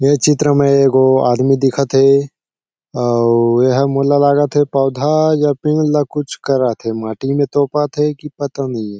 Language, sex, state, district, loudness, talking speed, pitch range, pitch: Chhattisgarhi, male, Chhattisgarh, Sarguja, -14 LUFS, 175 wpm, 130-145 Hz, 140 Hz